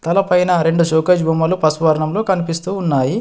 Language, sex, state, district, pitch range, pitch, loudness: Telugu, male, Telangana, Adilabad, 160-180 Hz, 165 Hz, -16 LUFS